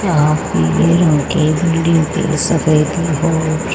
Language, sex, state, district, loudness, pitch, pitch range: Hindi, female, Haryana, Jhajjar, -14 LUFS, 160 Hz, 155-170 Hz